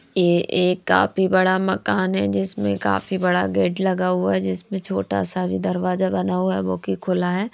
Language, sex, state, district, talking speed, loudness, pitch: Hindi, female, Haryana, Rohtak, 200 wpm, -21 LUFS, 180 Hz